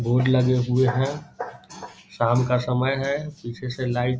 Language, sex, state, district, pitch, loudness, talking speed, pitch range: Hindi, male, Bihar, Saharsa, 125 Hz, -23 LUFS, 170 wpm, 125-130 Hz